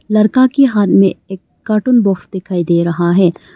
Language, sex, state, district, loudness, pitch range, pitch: Hindi, female, Arunachal Pradesh, Longding, -13 LUFS, 180-215 Hz, 195 Hz